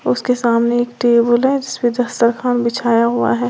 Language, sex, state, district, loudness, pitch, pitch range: Hindi, female, Uttar Pradesh, Lalitpur, -16 LUFS, 240 Hz, 235-245 Hz